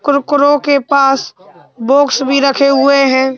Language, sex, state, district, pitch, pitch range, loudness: Hindi, male, Madhya Pradesh, Bhopal, 275 Hz, 270-285 Hz, -11 LUFS